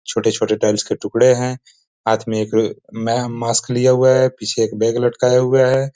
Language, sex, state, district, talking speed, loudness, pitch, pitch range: Hindi, male, Bihar, East Champaran, 200 wpm, -17 LUFS, 120 Hz, 115-130 Hz